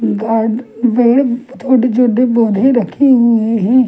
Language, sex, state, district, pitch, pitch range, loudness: Hindi, female, Delhi, New Delhi, 240 Hz, 225-250 Hz, -12 LUFS